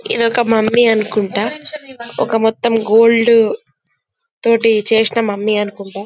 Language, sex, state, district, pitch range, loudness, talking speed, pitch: Telugu, female, Telangana, Karimnagar, 215-235 Hz, -14 LUFS, 110 wpm, 225 Hz